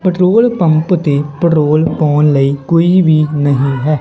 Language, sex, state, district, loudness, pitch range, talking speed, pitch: Punjabi, male, Punjab, Kapurthala, -12 LUFS, 145-175 Hz, 150 wpm, 155 Hz